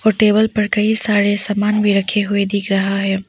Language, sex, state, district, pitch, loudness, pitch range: Hindi, female, Arunachal Pradesh, Papum Pare, 205 Hz, -15 LUFS, 200-210 Hz